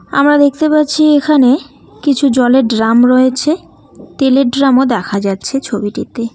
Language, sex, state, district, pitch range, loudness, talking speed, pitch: Bengali, female, West Bengal, Cooch Behar, 240-285 Hz, -12 LUFS, 125 wpm, 265 Hz